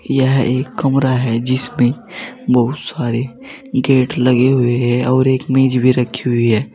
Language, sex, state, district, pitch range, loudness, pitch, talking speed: Hindi, male, Uttar Pradesh, Saharanpur, 125-135 Hz, -15 LUFS, 130 Hz, 160 wpm